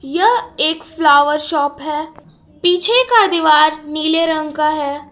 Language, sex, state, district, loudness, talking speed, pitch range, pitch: Hindi, female, Jharkhand, Palamu, -14 LUFS, 140 wpm, 300-355 Hz, 310 Hz